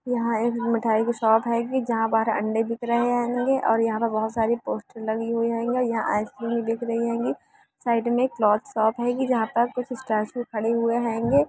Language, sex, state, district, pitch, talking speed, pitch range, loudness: Hindi, female, Andhra Pradesh, Chittoor, 230 Hz, 45 wpm, 225-240 Hz, -24 LUFS